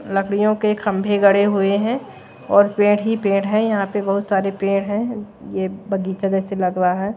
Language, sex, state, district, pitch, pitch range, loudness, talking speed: Hindi, female, Odisha, Malkangiri, 200 Hz, 195-210 Hz, -19 LUFS, 190 wpm